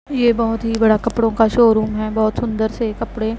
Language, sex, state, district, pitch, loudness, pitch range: Hindi, female, Punjab, Pathankot, 225 Hz, -17 LUFS, 220-230 Hz